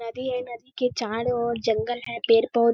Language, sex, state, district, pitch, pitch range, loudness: Hindi, female, Bihar, Kishanganj, 235 Hz, 230-245 Hz, -25 LUFS